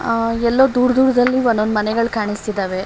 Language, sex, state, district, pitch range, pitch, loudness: Kannada, female, Karnataka, Shimoga, 215-250 Hz, 230 Hz, -17 LUFS